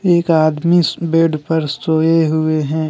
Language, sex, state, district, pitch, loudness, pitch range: Hindi, male, Jharkhand, Deoghar, 160 Hz, -15 LUFS, 155-165 Hz